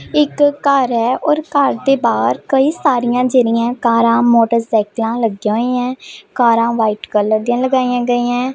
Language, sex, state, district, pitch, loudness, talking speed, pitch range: Hindi, male, Punjab, Pathankot, 245 Hz, -15 LUFS, 155 wpm, 230-265 Hz